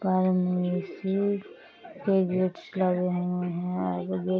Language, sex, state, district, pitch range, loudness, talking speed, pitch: Hindi, female, Bihar, Sitamarhi, 180-190 Hz, -28 LUFS, 165 wpm, 180 Hz